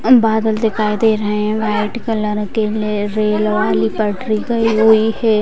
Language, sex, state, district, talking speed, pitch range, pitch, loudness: Hindi, female, Bihar, Vaishali, 155 wpm, 210-220 Hz, 215 Hz, -16 LUFS